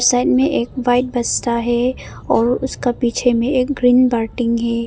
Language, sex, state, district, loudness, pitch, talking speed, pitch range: Hindi, female, Arunachal Pradesh, Papum Pare, -17 LUFS, 245 Hz, 170 wpm, 235-255 Hz